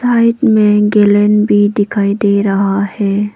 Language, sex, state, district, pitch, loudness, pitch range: Hindi, female, Arunachal Pradesh, Papum Pare, 205 Hz, -11 LUFS, 200-210 Hz